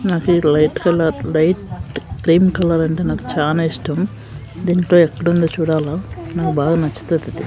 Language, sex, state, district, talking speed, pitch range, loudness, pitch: Telugu, female, Andhra Pradesh, Sri Satya Sai, 130 wpm, 150-170 Hz, -17 LUFS, 160 Hz